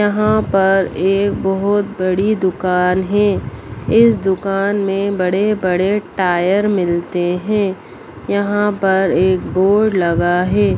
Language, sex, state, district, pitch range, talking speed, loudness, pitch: Hindi, female, Bihar, Darbhanga, 185-205 Hz, 115 wpm, -16 LUFS, 195 Hz